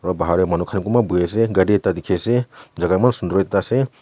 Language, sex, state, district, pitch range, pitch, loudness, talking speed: Nagamese, male, Nagaland, Kohima, 90-120 Hz, 100 Hz, -19 LUFS, 240 wpm